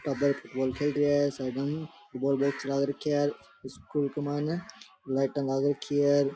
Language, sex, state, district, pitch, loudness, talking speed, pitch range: Rajasthani, male, Rajasthan, Nagaur, 140 Hz, -29 LUFS, 170 wpm, 140-145 Hz